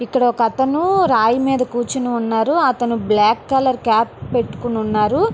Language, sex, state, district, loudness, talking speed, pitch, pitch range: Telugu, female, Andhra Pradesh, Srikakulam, -17 LUFS, 145 wpm, 240 Hz, 225-265 Hz